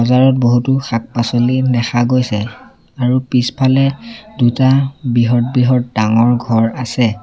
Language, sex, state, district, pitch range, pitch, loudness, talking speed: Assamese, male, Assam, Sonitpur, 120-130 Hz, 125 Hz, -14 LUFS, 110 wpm